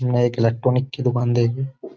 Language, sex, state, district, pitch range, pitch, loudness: Hindi, male, Uttar Pradesh, Jyotiba Phule Nagar, 120-130 Hz, 120 Hz, -20 LUFS